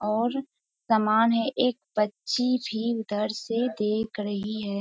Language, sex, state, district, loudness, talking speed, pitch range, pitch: Hindi, female, Bihar, Kishanganj, -26 LUFS, 135 wpm, 210-235 Hz, 220 Hz